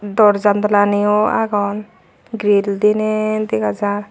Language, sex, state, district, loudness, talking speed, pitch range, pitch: Chakma, female, Tripura, Unakoti, -16 LUFS, 115 wpm, 205-215 Hz, 205 Hz